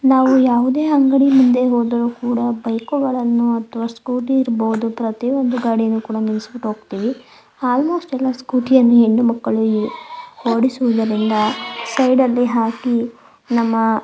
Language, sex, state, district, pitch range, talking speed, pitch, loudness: Kannada, female, Karnataka, Mysore, 230-260 Hz, 115 wpm, 240 Hz, -17 LUFS